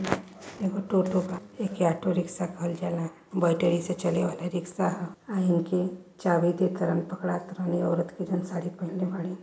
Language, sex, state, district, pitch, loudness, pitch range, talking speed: Hindi, male, Uttar Pradesh, Varanasi, 180 Hz, -29 LUFS, 175-185 Hz, 155 wpm